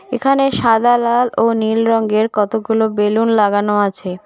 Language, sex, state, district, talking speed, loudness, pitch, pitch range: Bengali, female, West Bengal, Cooch Behar, 140 wpm, -15 LUFS, 225 Hz, 210-235 Hz